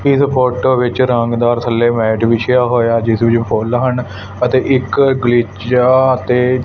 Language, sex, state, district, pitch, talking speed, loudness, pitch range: Punjabi, male, Punjab, Fazilka, 125 Hz, 145 wpm, -13 LUFS, 115-130 Hz